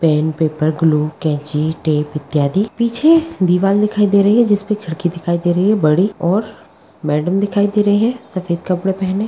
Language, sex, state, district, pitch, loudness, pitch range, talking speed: Hindi, female, Bihar, Begusarai, 185 Hz, -16 LUFS, 160-205 Hz, 190 wpm